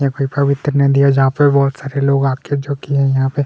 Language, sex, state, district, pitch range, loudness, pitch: Hindi, male, Chhattisgarh, Kabirdham, 135-140 Hz, -15 LUFS, 140 Hz